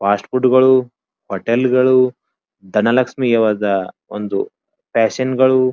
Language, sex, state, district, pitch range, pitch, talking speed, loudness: Kannada, male, Karnataka, Dharwad, 105-130 Hz, 120 Hz, 95 wpm, -16 LUFS